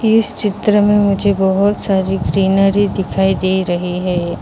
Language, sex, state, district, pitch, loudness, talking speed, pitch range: Hindi, female, Maharashtra, Mumbai Suburban, 195 Hz, -15 LUFS, 150 wpm, 190-205 Hz